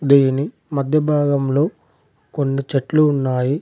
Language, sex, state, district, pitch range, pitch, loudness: Telugu, male, Telangana, Adilabad, 135-150 Hz, 140 Hz, -18 LUFS